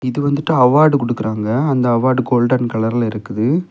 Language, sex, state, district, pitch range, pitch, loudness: Tamil, male, Tamil Nadu, Kanyakumari, 115-140 Hz, 125 Hz, -16 LUFS